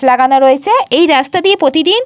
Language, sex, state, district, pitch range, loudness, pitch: Bengali, female, Jharkhand, Jamtara, 265-380 Hz, -9 LUFS, 285 Hz